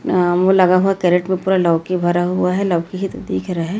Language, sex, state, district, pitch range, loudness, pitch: Hindi, female, Chhattisgarh, Raipur, 175-190 Hz, -17 LUFS, 180 Hz